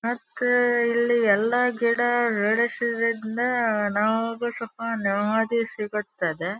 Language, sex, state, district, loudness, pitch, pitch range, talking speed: Kannada, female, Karnataka, Dharwad, -23 LUFS, 230 Hz, 215-240 Hz, 80 wpm